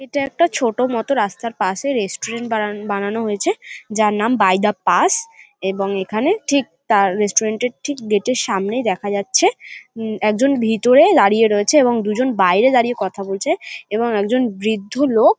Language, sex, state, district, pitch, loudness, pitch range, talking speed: Bengali, female, West Bengal, North 24 Parganas, 225 Hz, -17 LUFS, 205-265 Hz, 160 wpm